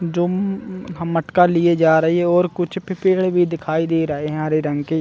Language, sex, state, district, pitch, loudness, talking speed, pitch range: Hindi, male, Chhattisgarh, Bilaspur, 170 Hz, -18 LUFS, 215 wpm, 160-180 Hz